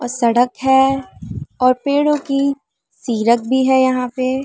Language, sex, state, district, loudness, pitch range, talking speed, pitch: Hindi, female, Uttar Pradesh, Muzaffarnagar, -16 LUFS, 250-270 Hz, 160 wpm, 260 Hz